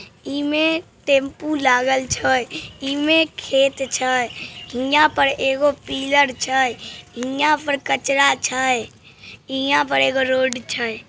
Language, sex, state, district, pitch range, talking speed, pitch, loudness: Maithili, male, Bihar, Samastipur, 255-285 Hz, 115 wpm, 270 Hz, -19 LUFS